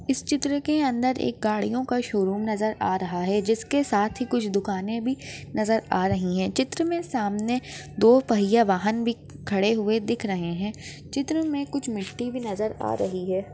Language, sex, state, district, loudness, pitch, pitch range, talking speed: Hindi, female, Maharashtra, Chandrapur, -25 LUFS, 220 Hz, 200-255 Hz, 190 wpm